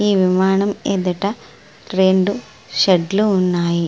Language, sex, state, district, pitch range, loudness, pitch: Telugu, female, Andhra Pradesh, Srikakulam, 185-200 Hz, -17 LUFS, 190 Hz